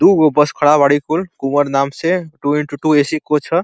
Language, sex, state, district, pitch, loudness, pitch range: Bhojpuri, male, Uttar Pradesh, Deoria, 150 Hz, -15 LUFS, 145-160 Hz